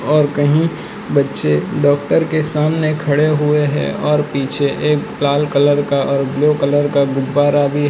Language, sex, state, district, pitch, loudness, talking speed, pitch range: Hindi, male, Gujarat, Valsad, 145 Hz, -15 LUFS, 165 wpm, 140-150 Hz